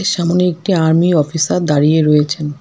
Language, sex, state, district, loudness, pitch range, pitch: Bengali, female, West Bengal, Alipurduar, -14 LUFS, 150-175 Hz, 160 Hz